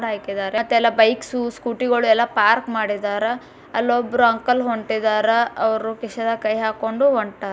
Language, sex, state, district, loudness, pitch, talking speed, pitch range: Kannada, female, Karnataka, Bijapur, -20 LUFS, 225 Hz, 120 wpm, 220-235 Hz